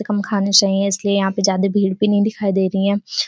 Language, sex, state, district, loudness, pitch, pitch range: Hindi, female, Uttar Pradesh, Deoria, -17 LUFS, 200 Hz, 195-205 Hz